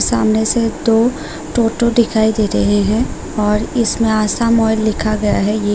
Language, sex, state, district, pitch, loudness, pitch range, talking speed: Hindi, female, Tripura, Unakoti, 220 Hz, -15 LUFS, 215-230 Hz, 175 wpm